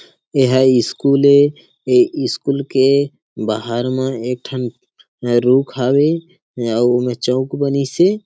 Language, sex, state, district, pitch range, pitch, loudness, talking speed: Chhattisgarhi, male, Chhattisgarh, Sarguja, 125-140 Hz, 130 Hz, -16 LUFS, 110 wpm